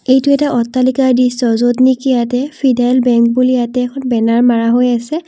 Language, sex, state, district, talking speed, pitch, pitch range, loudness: Assamese, female, Assam, Kamrup Metropolitan, 170 wpm, 250 Hz, 240-260 Hz, -12 LUFS